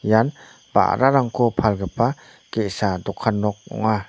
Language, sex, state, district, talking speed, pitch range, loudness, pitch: Garo, male, Meghalaya, North Garo Hills, 105 wpm, 100-120 Hz, -21 LUFS, 110 Hz